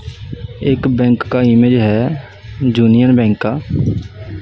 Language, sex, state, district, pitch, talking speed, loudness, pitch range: Hindi, male, Punjab, Kapurthala, 120 Hz, 110 wpm, -13 LUFS, 110-125 Hz